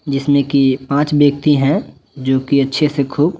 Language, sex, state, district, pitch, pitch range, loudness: Hindi, male, Bihar, West Champaran, 140 Hz, 135-150 Hz, -15 LUFS